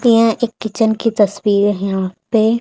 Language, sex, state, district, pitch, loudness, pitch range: Hindi, female, Haryana, Charkhi Dadri, 220 Hz, -16 LUFS, 200-230 Hz